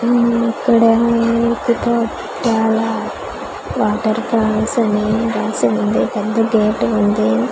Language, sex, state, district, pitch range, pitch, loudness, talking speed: Telugu, female, Andhra Pradesh, Manyam, 215-230 Hz, 225 Hz, -16 LUFS, 110 wpm